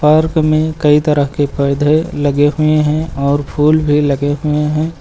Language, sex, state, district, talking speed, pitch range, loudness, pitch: Hindi, male, Uttar Pradesh, Lucknow, 180 wpm, 145-155 Hz, -13 LUFS, 150 Hz